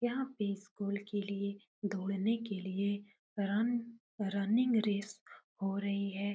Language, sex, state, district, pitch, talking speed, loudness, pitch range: Hindi, female, Uttar Pradesh, Etah, 200 Hz, 130 wpm, -36 LUFS, 200-215 Hz